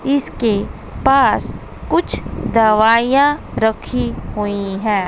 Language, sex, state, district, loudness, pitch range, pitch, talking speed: Hindi, female, Bihar, West Champaran, -16 LUFS, 205-270 Hz, 220 Hz, 85 wpm